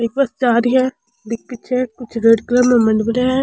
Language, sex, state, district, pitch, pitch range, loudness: Rajasthani, female, Rajasthan, Churu, 245 Hz, 230-255 Hz, -16 LUFS